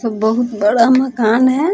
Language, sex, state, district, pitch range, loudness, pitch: Hindi, female, Bihar, Vaishali, 220-260 Hz, -14 LUFS, 235 Hz